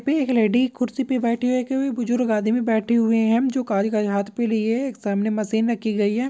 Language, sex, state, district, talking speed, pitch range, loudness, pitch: Hindi, male, Jharkhand, Sahebganj, 250 wpm, 220-250 Hz, -21 LUFS, 230 Hz